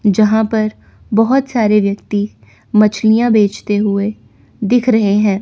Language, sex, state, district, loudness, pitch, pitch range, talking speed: Hindi, female, Chandigarh, Chandigarh, -14 LUFS, 215 Hz, 205-225 Hz, 120 wpm